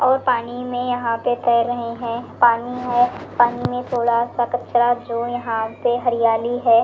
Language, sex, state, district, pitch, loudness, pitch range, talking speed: Hindi, female, Delhi, New Delhi, 240 Hz, -20 LUFS, 235-245 Hz, 175 wpm